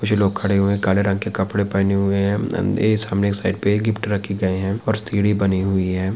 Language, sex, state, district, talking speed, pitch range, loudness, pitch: Hindi, male, Chhattisgarh, Korba, 270 wpm, 100-105 Hz, -19 LUFS, 100 Hz